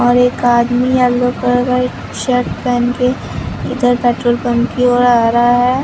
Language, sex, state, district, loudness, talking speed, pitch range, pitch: Hindi, female, Bihar, Katihar, -14 LUFS, 165 wpm, 245-250 Hz, 245 Hz